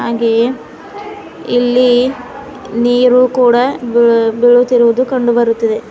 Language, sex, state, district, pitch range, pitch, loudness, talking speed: Kannada, female, Karnataka, Bidar, 235-255 Hz, 245 Hz, -12 LUFS, 80 wpm